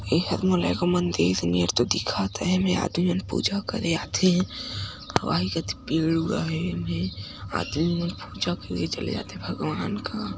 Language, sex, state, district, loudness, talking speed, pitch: Hindi, female, Chhattisgarh, Sarguja, -26 LUFS, 180 wpm, 105 Hz